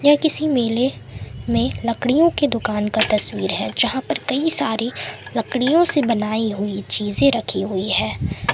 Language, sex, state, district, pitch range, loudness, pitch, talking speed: Hindi, female, Jharkhand, Palamu, 210-285 Hz, -20 LUFS, 235 Hz, 155 wpm